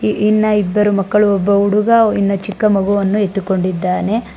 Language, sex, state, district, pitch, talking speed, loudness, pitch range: Kannada, female, Karnataka, Bangalore, 200 Hz, 135 wpm, -14 LUFS, 195-210 Hz